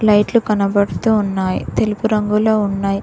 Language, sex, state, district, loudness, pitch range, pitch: Telugu, female, Telangana, Mahabubabad, -16 LUFS, 200-215 Hz, 210 Hz